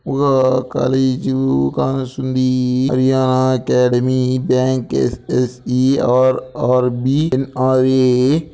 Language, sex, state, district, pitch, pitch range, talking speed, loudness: Telugu, male, Andhra Pradesh, Anantapur, 130 Hz, 125-130 Hz, 75 wpm, -16 LUFS